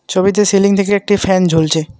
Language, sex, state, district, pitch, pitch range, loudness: Bengali, male, West Bengal, Alipurduar, 195 Hz, 165-200 Hz, -13 LUFS